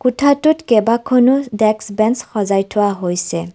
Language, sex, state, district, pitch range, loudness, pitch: Assamese, female, Assam, Kamrup Metropolitan, 200-250 Hz, -15 LUFS, 215 Hz